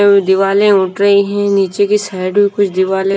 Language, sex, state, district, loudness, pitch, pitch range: Hindi, female, Himachal Pradesh, Shimla, -12 LUFS, 200 Hz, 190-205 Hz